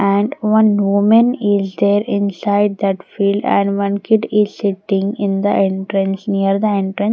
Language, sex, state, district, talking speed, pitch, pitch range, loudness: English, female, Maharashtra, Gondia, 160 wpm, 200 Hz, 195-210 Hz, -16 LUFS